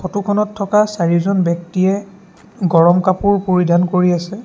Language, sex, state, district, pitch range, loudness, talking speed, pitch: Assamese, male, Assam, Sonitpur, 175-200 Hz, -15 LUFS, 120 wpm, 185 Hz